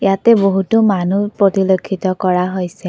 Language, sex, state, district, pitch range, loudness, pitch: Assamese, female, Assam, Kamrup Metropolitan, 185-200 Hz, -15 LUFS, 195 Hz